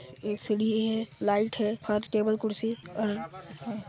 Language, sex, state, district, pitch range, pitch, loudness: Hindi, male, Chhattisgarh, Sarguja, 210-220 Hz, 215 Hz, -30 LUFS